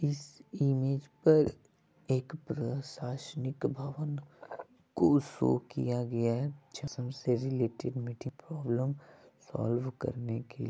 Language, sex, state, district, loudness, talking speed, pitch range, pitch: Hindi, female, Bihar, Begusarai, -33 LUFS, 105 wpm, 125-145 Hz, 135 Hz